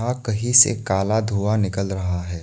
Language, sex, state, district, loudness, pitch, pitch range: Hindi, male, Assam, Kamrup Metropolitan, -19 LUFS, 105 Hz, 95-115 Hz